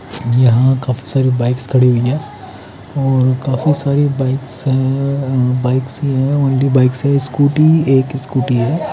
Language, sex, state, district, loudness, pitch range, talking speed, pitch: Hindi, male, Haryana, Charkhi Dadri, -14 LUFS, 125-140 Hz, 120 wpm, 130 Hz